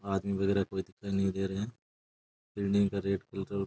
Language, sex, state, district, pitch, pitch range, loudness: Rajasthani, male, Rajasthan, Churu, 100 Hz, 95-100 Hz, -32 LUFS